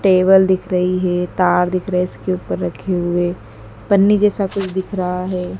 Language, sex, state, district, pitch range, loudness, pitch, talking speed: Hindi, male, Madhya Pradesh, Dhar, 175-190 Hz, -17 LUFS, 180 Hz, 195 wpm